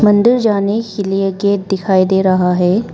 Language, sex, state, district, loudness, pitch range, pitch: Hindi, female, Arunachal Pradesh, Papum Pare, -14 LUFS, 190-210 Hz, 195 Hz